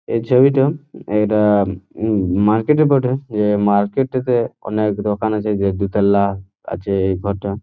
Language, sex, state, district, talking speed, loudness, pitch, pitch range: Bengali, male, West Bengal, Jhargram, 150 wpm, -17 LUFS, 105 Hz, 100-120 Hz